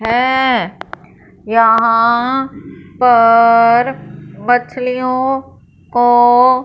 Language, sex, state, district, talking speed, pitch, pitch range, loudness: Hindi, female, Punjab, Fazilka, 45 wpm, 245 Hz, 230-255 Hz, -12 LUFS